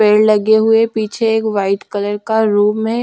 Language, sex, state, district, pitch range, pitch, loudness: Hindi, female, Odisha, Malkangiri, 205-220 Hz, 215 Hz, -14 LUFS